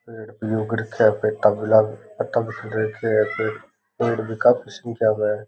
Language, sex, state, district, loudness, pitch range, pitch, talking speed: Rajasthani, male, Rajasthan, Nagaur, -21 LUFS, 110-115 Hz, 110 Hz, 165 wpm